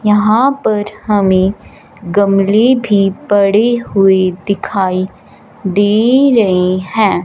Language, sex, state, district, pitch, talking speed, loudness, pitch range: Hindi, female, Punjab, Fazilka, 205 Hz, 90 wpm, -12 LUFS, 190-220 Hz